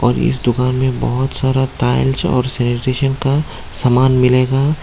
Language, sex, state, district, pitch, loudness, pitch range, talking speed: Hindi, male, Tripura, Dhalai, 130 Hz, -15 LUFS, 125-135 Hz, 150 wpm